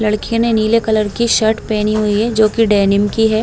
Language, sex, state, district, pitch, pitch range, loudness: Hindi, female, Uttar Pradesh, Hamirpur, 220 Hz, 210-225 Hz, -14 LUFS